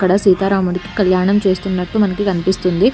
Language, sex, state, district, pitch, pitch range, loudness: Telugu, female, Telangana, Hyderabad, 190 Hz, 185-200 Hz, -16 LUFS